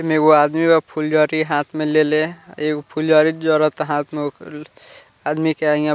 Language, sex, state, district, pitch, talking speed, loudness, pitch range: Bhojpuri, male, Bihar, Muzaffarpur, 155 Hz, 180 wpm, -18 LUFS, 150-155 Hz